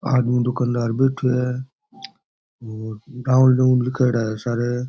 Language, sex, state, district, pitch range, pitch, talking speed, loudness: Rajasthani, male, Rajasthan, Churu, 120-130 Hz, 125 Hz, 100 wpm, -20 LUFS